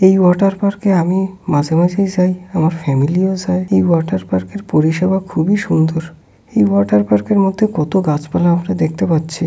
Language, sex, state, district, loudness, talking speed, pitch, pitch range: Bengali, male, West Bengal, Kolkata, -15 LUFS, 185 wpm, 175 Hz, 160-190 Hz